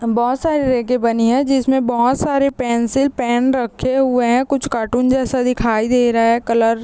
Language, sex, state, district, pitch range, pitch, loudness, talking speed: Hindi, female, Bihar, Muzaffarpur, 235-265 Hz, 250 Hz, -16 LUFS, 195 wpm